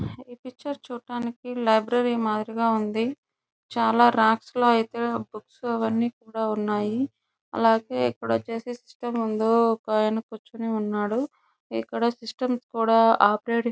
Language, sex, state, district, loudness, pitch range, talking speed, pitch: Telugu, female, Andhra Pradesh, Chittoor, -25 LUFS, 220-240 Hz, 125 wpm, 230 Hz